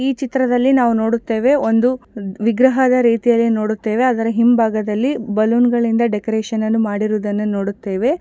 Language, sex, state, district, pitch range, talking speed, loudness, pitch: Kannada, female, Karnataka, Gulbarga, 215-250 Hz, 115 wpm, -16 LUFS, 230 Hz